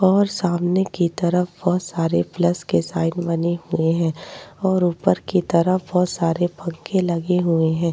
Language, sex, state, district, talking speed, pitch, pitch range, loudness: Hindi, female, Uttar Pradesh, Jyotiba Phule Nagar, 165 wpm, 175 Hz, 170-180 Hz, -21 LUFS